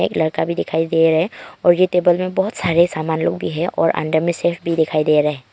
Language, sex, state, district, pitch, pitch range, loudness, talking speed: Hindi, female, Arunachal Pradesh, Longding, 165 Hz, 160-175 Hz, -18 LUFS, 280 wpm